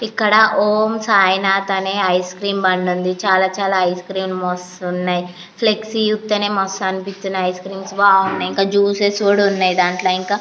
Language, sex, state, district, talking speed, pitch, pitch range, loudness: Telugu, female, Andhra Pradesh, Anantapur, 140 wpm, 195 Hz, 185-205 Hz, -17 LUFS